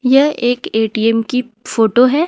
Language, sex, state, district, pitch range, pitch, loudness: Hindi, female, Jharkhand, Ranchi, 225-265 Hz, 245 Hz, -15 LUFS